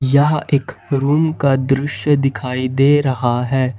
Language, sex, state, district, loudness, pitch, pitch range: Hindi, male, Jharkhand, Ranchi, -17 LUFS, 135 Hz, 130-145 Hz